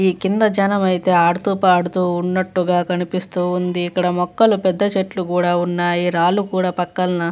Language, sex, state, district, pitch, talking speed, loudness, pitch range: Telugu, female, Andhra Pradesh, Visakhapatnam, 180 Hz, 155 wpm, -18 LUFS, 175-190 Hz